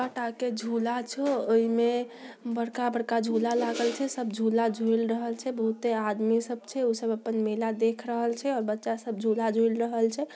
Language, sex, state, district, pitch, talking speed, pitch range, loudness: Magahi, female, Bihar, Samastipur, 230 Hz, 175 wpm, 225-240 Hz, -28 LUFS